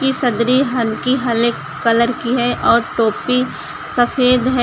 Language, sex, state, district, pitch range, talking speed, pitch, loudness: Hindi, female, Uttar Pradesh, Lucknow, 235-255 Hz, 130 wpm, 245 Hz, -16 LUFS